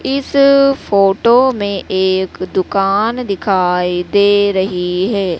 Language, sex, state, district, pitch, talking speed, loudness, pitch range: Hindi, female, Madhya Pradesh, Dhar, 195 Hz, 100 wpm, -14 LUFS, 190-225 Hz